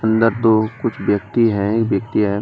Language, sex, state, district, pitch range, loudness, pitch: Hindi, male, Delhi, New Delhi, 100-115 Hz, -17 LUFS, 110 Hz